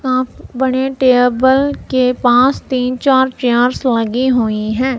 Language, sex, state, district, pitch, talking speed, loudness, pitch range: Hindi, female, Punjab, Kapurthala, 255 Hz, 130 wpm, -14 LUFS, 245-260 Hz